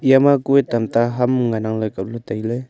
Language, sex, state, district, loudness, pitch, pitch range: Wancho, male, Arunachal Pradesh, Longding, -18 LUFS, 120 Hz, 110-130 Hz